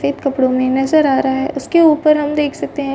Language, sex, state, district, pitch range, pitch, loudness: Hindi, female, Chhattisgarh, Rajnandgaon, 265-300 Hz, 280 Hz, -15 LUFS